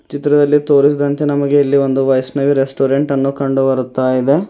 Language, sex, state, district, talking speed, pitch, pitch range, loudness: Kannada, male, Karnataka, Bidar, 120 wpm, 140 Hz, 135-145 Hz, -14 LUFS